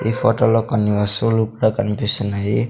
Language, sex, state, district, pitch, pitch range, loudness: Telugu, male, Andhra Pradesh, Sri Satya Sai, 110 Hz, 105-115 Hz, -18 LUFS